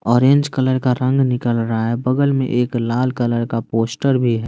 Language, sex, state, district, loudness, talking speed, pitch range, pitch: Hindi, male, Bihar, West Champaran, -18 LUFS, 215 wpm, 115-130 Hz, 125 Hz